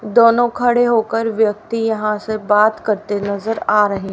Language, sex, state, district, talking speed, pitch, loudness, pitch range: Hindi, female, Haryana, Rohtak, 160 wpm, 220 Hz, -16 LUFS, 210-225 Hz